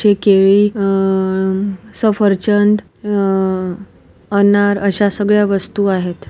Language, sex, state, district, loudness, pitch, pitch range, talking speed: Marathi, female, Maharashtra, Pune, -14 LUFS, 200 Hz, 190-205 Hz, 95 wpm